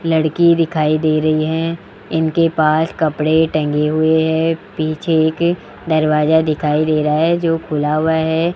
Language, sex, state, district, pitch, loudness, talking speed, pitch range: Hindi, male, Rajasthan, Jaipur, 160 Hz, -16 LUFS, 155 wpm, 155-165 Hz